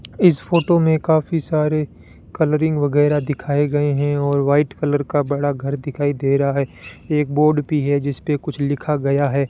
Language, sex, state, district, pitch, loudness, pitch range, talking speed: Hindi, male, Rajasthan, Bikaner, 145 Hz, -19 LUFS, 140-150 Hz, 190 wpm